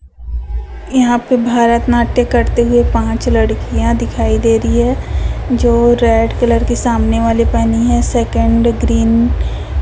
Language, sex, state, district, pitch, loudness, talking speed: Hindi, female, Chhattisgarh, Raipur, 230 Hz, -13 LUFS, 135 wpm